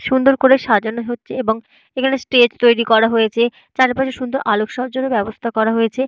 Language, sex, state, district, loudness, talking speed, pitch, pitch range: Bengali, female, Jharkhand, Jamtara, -16 LUFS, 170 wpm, 240 Hz, 225-260 Hz